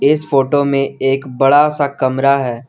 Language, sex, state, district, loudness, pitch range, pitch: Hindi, male, Jharkhand, Garhwa, -14 LUFS, 135-145 Hz, 140 Hz